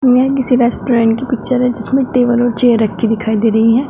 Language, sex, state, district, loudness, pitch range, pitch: Hindi, female, Uttar Pradesh, Shamli, -13 LUFS, 225-255 Hz, 245 Hz